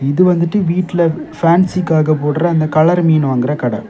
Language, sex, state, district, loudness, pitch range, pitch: Tamil, male, Tamil Nadu, Kanyakumari, -14 LUFS, 150-175 Hz, 165 Hz